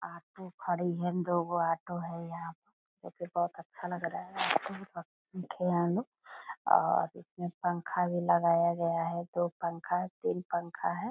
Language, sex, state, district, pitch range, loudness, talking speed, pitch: Hindi, female, Bihar, Purnia, 170-180 Hz, -33 LUFS, 150 wpm, 175 Hz